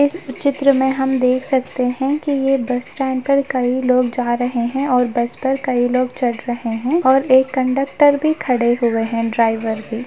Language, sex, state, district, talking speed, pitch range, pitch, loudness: Hindi, female, Bihar, Gaya, 200 wpm, 240-270 Hz, 255 Hz, -17 LUFS